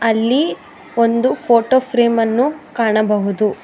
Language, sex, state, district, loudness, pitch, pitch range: Kannada, female, Karnataka, Bangalore, -16 LUFS, 230 Hz, 225-255 Hz